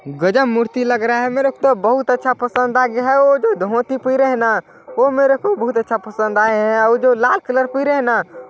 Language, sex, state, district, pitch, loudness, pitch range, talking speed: Hindi, male, Chhattisgarh, Balrampur, 250 Hz, -16 LUFS, 225-265 Hz, 240 wpm